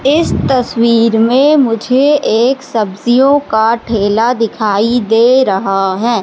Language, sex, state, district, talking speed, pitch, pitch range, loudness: Hindi, female, Madhya Pradesh, Katni, 115 wpm, 235 Hz, 220-260 Hz, -11 LUFS